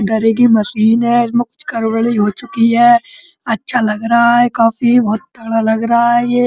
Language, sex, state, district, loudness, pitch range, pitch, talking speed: Hindi, male, Uttar Pradesh, Muzaffarnagar, -13 LUFS, 225-240 Hz, 235 Hz, 185 wpm